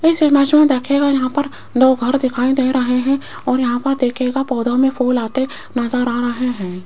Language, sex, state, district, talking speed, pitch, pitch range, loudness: Hindi, female, Rajasthan, Jaipur, 210 wpm, 255 Hz, 245-275 Hz, -16 LUFS